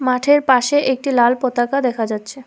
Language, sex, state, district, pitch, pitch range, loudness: Bengali, female, West Bengal, Alipurduar, 255 Hz, 240-270 Hz, -16 LUFS